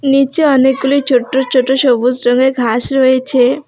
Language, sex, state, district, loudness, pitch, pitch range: Bengali, female, West Bengal, Alipurduar, -12 LUFS, 260 Hz, 250-270 Hz